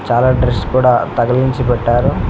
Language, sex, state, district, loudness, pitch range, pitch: Telugu, male, Telangana, Mahabubabad, -14 LUFS, 120-130 Hz, 125 Hz